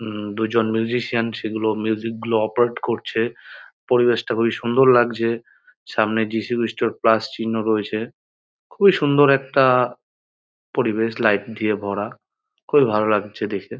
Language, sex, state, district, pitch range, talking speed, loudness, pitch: Bengali, male, West Bengal, North 24 Parganas, 110-120 Hz, 130 wpm, -20 LUFS, 115 Hz